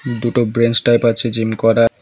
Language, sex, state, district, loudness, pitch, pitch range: Bengali, male, West Bengal, Alipurduar, -15 LUFS, 115 Hz, 115-120 Hz